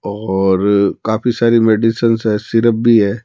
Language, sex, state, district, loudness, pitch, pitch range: Hindi, male, Rajasthan, Jaipur, -14 LUFS, 110 Hz, 100-115 Hz